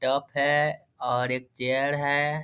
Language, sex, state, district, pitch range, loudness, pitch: Hindi, male, Bihar, Darbhanga, 130-145 Hz, -26 LUFS, 140 Hz